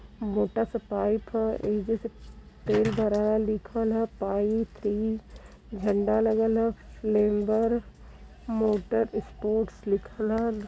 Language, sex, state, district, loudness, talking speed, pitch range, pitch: Hindi, female, Uttar Pradesh, Varanasi, -27 LUFS, 100 wpm, 210-225 Hz, 215 Hz